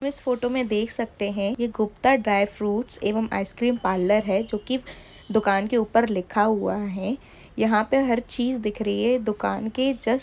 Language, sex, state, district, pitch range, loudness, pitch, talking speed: Hindi, female, Jharkhand, Jamtara, 205-245 Hz, -24 LUFS, 220 Hz, 180 wpm